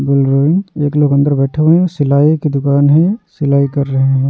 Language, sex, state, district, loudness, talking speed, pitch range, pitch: Hindi, male, Odisha, Nuapada, -12 LUFS, 195 wpm, 140-155 Hz, 145 Hz